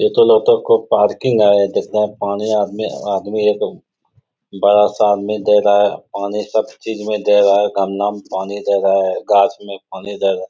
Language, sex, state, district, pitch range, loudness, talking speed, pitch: Hindi, male, Bihar, Bhagalpur, 100-105 Hz, -15 LUFS, 215 wpm, 105 Hz